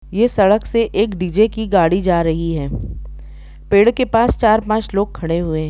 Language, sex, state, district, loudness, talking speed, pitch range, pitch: Hindi, female, Jharkhand, Jamtara, -16 LUFS, 190 wpm, 160-220 Hz, 195 Hz